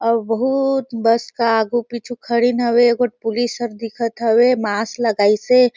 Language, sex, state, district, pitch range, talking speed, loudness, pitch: Surgujia, female, Chhattisgarh, Sarguja, 225-245 Hz, 145 wpm, -18 LUFS, 235 Hz